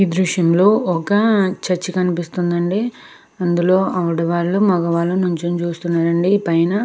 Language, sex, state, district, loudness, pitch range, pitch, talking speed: Telugu, female, Andhra Pradesh, Krishna, -17 LUFS, 170-190 Hz, 180 Hz, 105 wpm